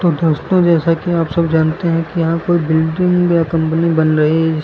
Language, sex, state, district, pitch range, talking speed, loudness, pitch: Hindi, male, Uttar Pradesh, Lucknow, 160-170 Hz, 220 wpm, -14 LUFS, 165 Hz